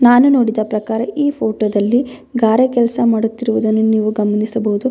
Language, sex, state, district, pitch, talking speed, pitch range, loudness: Kannada, female, Karnataka, Bellary, 225 Hz, 75 wpm, 215-245 Hz, -15 LUFS